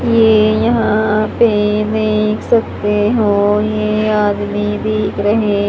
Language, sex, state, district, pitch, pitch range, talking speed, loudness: Hindi, female, Haryana, Charkhi Dadri, 215 Hz, 210-215 Hz, 105 wpm, -14 LUFS